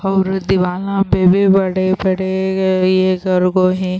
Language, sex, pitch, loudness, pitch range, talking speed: Urdu, female, 185 Hz, -15 LUFS, 185-190 Hz, 105 wpm